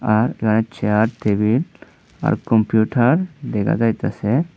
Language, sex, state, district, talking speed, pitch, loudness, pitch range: Bengali, male, Tripura, Unakoti, 105 wpm, 110 Hz, -19 LUFS, 110-130 Hz